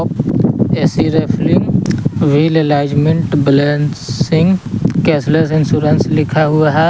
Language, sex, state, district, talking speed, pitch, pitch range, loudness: Hindi, male, Jharkhand, Ranchi, 95 wpm, 155 Hz, 145-160 Hz, -13 LUFS